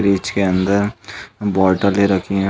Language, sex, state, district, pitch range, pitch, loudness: Hindi, male, Uttar Pradesh, Jalaun, 95-100 Hz, 100 Hz, -17 LUFS